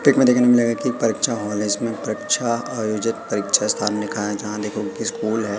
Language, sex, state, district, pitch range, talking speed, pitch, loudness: Hindi, male, Madhya Pradesh, Katni, 105-120 Hz, 160 wpm, 110 Hz, -21 LUFS